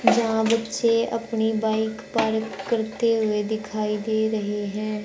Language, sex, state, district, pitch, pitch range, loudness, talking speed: Hindi, male, Haryana, Jhajjar, 220 Hz, 215-230 Hz, -24 LUFS, 130 wpm